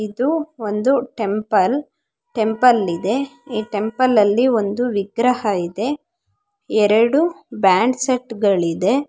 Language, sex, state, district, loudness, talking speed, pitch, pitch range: Kannada, female, Karnataka, Chamarajanagar, -18 LUFS, 90 wpm, 230 Hz, 210-265 Hz